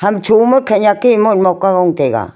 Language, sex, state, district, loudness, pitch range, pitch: Wancho, female, Arunachal Pradesh, Longding, -11 LUFS, 190-220 Hz, 210 Hz